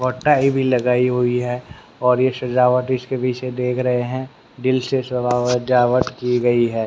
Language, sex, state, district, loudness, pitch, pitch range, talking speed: Hindi, male, Haryana, Rohtak, -19 LUFS, 125 Hz, 125-130 Hz, 185 wpm